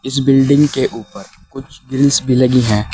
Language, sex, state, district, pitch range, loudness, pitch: Hindi, male, Uttar Pradesh, Saharanpur, 130-135 Hz, -13 LUFS, 135 Hz